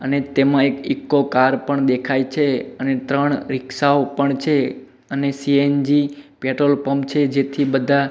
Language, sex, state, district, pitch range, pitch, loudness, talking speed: Gujarati, male, Gujarat, Gandhinagar, 135-140 Hz, 140 Hz, -19 LUFS, 150 wpm